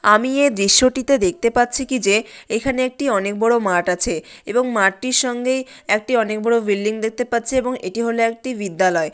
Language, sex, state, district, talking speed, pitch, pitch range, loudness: Bengali, female, West Bengal, Malda, 175 wpm, 235 Hz, 210-255 Hz, -18 LUFS